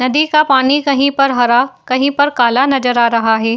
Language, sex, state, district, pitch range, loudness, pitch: Hindi, female, Uttar Pradesh, Etah, 245-280 Hz, -12 LUFS, 265 Hz